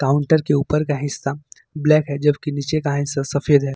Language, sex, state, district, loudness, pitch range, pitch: Hindi, male, Jharkhand, Ranchi, -20 LUFS, 140-150 Hz, 145 Hz